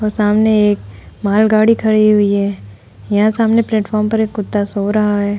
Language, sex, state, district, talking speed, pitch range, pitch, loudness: Hindi, female, Uttar Pradesh, Hamirpur, 180 wpm, 200-215 Hz, 210 Hz, -14 LUFS